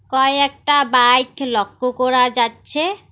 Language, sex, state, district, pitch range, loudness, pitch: Bengali, female, West Bengal, Alipurduar, 250-280 Hz, -16 LUFS, 255 Hz